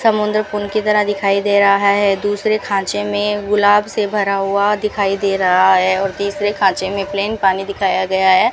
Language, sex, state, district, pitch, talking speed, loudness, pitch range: Hindi, female, Rajasthan, Bikaner, 200 Hz, 195 wpm, -16 LUFS, 195-210 Hz